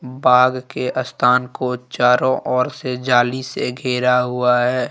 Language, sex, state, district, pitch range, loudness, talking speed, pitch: Hindi, male, Jharkhand, Ranchi, 125-130 Hz, -18 LUFS, 145 wpm, 125 Hz